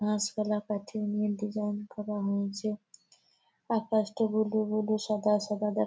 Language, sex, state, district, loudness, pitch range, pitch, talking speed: Bengali, female, West Bengal, Malda, -31 LUFS, 210-215 Hz, 210 Hz, 80 wpm